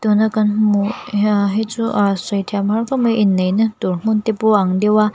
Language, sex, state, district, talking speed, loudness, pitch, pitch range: Mizo, female, Mizoram, Aizawl, 280 wpm, -17 LUFS, 210 Hz, 200-220 Hz